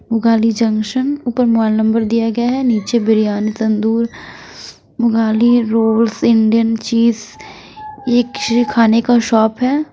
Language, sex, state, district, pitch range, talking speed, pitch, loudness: Hindi, female, Odisha, Sambalpur, 220-240 Hz, 120 wpm, 230 Hz, -14 LUFS